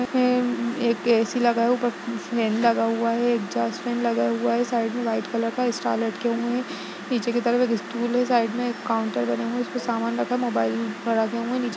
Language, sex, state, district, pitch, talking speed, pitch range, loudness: Hindi, female, Uttar Pradesh, Budaun, 235 Hz, 240 wpm, 225-245 Hz, -24 LUFS